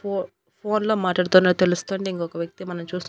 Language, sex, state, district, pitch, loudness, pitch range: Telugu, female, Andhra Pradesh, Annamaya, 185 Hz, -22 LUFS, 180-195 Hz